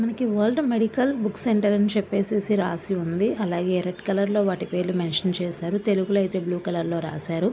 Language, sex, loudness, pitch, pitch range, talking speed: Telugu, male, -24 LUFS, 195 Hz, 180-210 Hz, 190 wpm